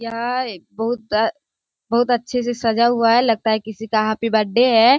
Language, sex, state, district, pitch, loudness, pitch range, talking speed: Hindi, female, Bihar, Kishanganj, 230 Hz, -19 LUFS, 220-240 Hz, 205 wpm